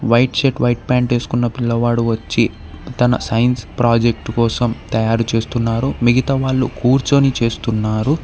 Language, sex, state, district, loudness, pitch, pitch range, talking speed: Telugu, male, Telangana, Hyderabad, -17 LUFS, 120 Hz, 115-125 Hz, 125 wpm